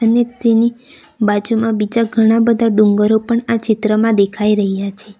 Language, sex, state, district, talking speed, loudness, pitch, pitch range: Gujarati, female, Gujarat, Valsad, 150 wpm, -14 LUFS, 225 Hz, 210-230 Hz